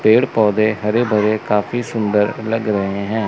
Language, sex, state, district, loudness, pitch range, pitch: Hindi, male, Chandigarh, Chandigarh, -17 LUFS, 105-110 Hz, 110 Hz